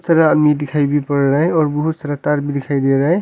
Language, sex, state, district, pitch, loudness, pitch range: Hindi, male, Arunachal Pradesh, Longding, 145 Hz, -16 LUFS, 145-155 Hz